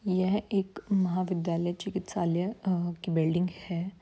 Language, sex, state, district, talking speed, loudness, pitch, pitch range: Hindi, female, Bihar, Saran, 120 wpm, -30 LUFS, 185 Hz, 175-195 Hz